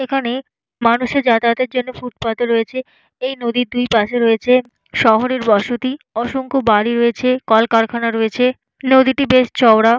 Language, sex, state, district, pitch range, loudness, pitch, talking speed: Bengali, female, Jharkhand, Jamtara, 230-255 Hz, -16 LUFS, 245 Hz, 120 wpm